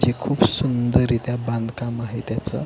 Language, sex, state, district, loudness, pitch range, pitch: Marathi, male, Maharashtra, Pune, -22 LUFS, 115-125 Hz, 120 Hz